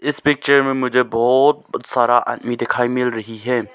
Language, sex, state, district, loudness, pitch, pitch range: Hindi, male, Arunachal Pradesh, Lower Dibang Valley, -17 LUFS, 125 Hz, 120-135 Hz